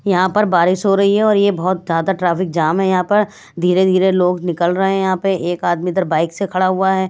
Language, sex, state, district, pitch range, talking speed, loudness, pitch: Hindi, female, Bihar, West Champaran, 175-195 Hz, 260 wpm, -16 LUFS, 185 Hz